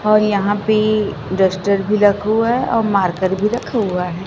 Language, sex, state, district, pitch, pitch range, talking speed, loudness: Hindi, female, Chhattisgarh, Raipur, 205 Hz, 190-215 Hz, 195 wpm, -16 LUFS